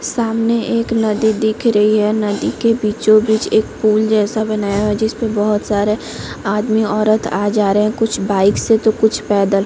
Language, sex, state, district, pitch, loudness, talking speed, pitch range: Hindi, female, Chhattisgarh, Korba, 215 Hz, -15 LUFS, 180 wpm, 210-220 Hz